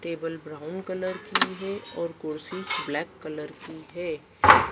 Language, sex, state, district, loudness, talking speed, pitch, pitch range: Hindi, female, Madhya Pradesh, Dhar, -28 LUFS, 140 wpm, 165 Hz, 155-185 Hz